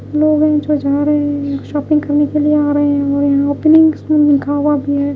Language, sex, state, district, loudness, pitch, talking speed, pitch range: Hindi, female, Odisha, Malkangiri, -14 LUFS, 290 Hz, 220 wpm, 285-300 Hz